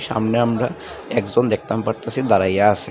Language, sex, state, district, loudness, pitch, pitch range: Bengali, male, Tripura, Unakoti, -19 LUFS, 110 Hz, 100-120 Hz